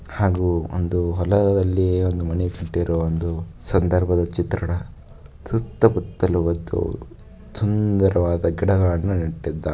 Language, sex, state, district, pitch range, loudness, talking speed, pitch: Kannada, male, Karnataka, Shimoga, 85-95 Hz, -21 LUFS, 90 wpm, 90 Hz